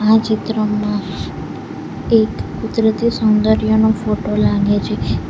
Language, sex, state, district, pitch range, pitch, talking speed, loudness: Gujarati, female, Gujarat, Valsad, 205-220 Hz, 215 Hz, 90 wpm, -16 LUFS